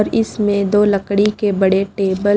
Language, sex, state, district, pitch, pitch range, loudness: Hindi, female, Haryana, Rohtak, 205 Hz, 195-210 Hz, -16 LUFS